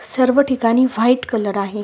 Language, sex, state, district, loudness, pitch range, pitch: Marathi, female, Maharashtra, Solapur, -16 LUFS, 215-255 Hz, 245 Hz